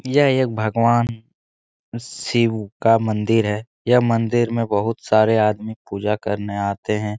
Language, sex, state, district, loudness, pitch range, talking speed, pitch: Hindi, male, Bihar, Jahanabad, -20 LUFS, 105-120 Hz, 140 wpm, 115 Hz